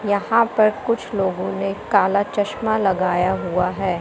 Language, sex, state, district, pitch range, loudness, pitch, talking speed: Hindi, female, Madhya Pradesh, Katni, 185-215 Hz, -20 LUFS, 200 Hz, 150 wpm